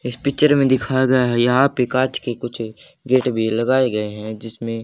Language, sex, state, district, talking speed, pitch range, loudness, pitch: Hindi, male, Haryana, Jhajjar, 210 wpm, 115-130 Hz, -18 LUFS, 125 Hz